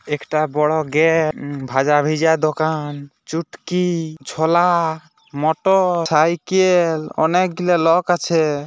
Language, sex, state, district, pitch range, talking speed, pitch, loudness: Bengali, male, West Bengal, Purulia, 150-175 Hz, 110 wpm, 160 Hz, -18 LUFS